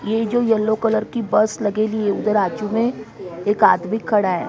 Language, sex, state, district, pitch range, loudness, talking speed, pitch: Hindi, female, Maharashtra, Mumbai Suburban, 205-225 Hz, -19 LUFS, 200 wpm, 215 Hz